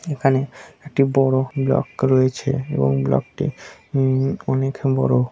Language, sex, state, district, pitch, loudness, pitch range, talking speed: Bengali, male, West Bengal, Dakshin Dinajpur, 135 Hz, -20 LUFS, 130-135 Hz, 125 wpm